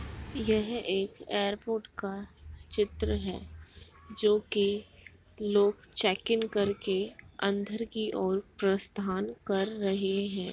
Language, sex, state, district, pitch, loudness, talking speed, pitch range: Hindi, female, Bihar, Jahanabad, 200 Hz, -31 LUFS, 100 wpm, 195-215 Hz